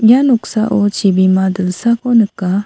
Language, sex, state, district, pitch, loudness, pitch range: Garo, female, Meghalaya, South Garo Hills, 205 Hz, -13 LUFS, 190-235 Hz